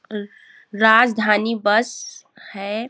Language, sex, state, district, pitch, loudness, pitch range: Hindi, female, Chhattisgarh, Bilaspur, 215 Hz, -17 LUFS, 205-225 Hz